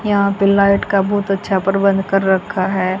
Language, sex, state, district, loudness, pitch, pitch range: Hindi, female, Haryana, Jhajjar, -16 LUFS, 195 Hz, 190-200 Hz